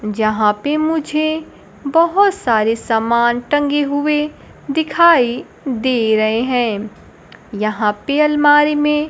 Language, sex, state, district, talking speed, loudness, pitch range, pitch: Hindi, male, Bihar, Kaimur, 110 wpm, -16 LUFS, 225-300 Hz, 280 Hz